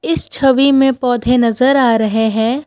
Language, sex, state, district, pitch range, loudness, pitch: Hindi, female, Assam, Kamrup Metropolitan, 225-265 Hz, -13 LUFS, 245 Hz